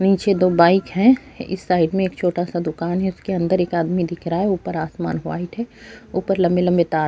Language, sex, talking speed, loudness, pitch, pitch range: Urdu, female, 235 wpm, -20 LUFS, 180 Hz, 170-190 Hz